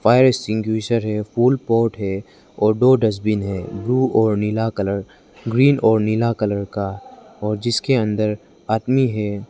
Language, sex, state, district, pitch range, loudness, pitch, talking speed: Hindi, male, Arunachal Pradesh, Lower Dibang Valley, 105-120 Hz, -19 LUFS, 110 Hz, 140 wpm